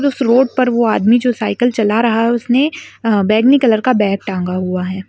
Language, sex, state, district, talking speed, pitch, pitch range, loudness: Hindi, female, Bihar, Araria, 200 wpm, 230 Hz, 205-250 Hz, -14 LUFS